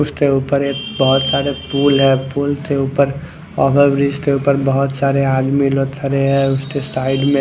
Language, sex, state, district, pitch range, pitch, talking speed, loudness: Hindi, male, Odisha, Khordha, 135-140 Hz, 140 Hz, 145 wpm, -16 LUFS